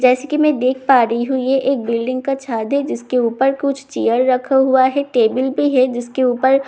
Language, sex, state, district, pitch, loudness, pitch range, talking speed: Hindi, female, Bihar, Katihar, 260 Hz, -16 LUFS, 250-275 Hz, 225 wpm